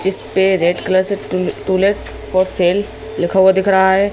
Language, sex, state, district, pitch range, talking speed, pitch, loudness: Hindi, male, Madhya Pradesh, Bhopal, 185-195 Hz, 215 wpm, 190 Hz, -15 LUFS